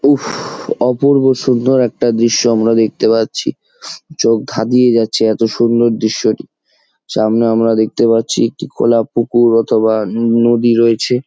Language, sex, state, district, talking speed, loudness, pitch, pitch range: Bengali, male, West Bengal, Jalpaiguri, 135 wpm, -13 LUFS, 115 Hz, 115-120 Hz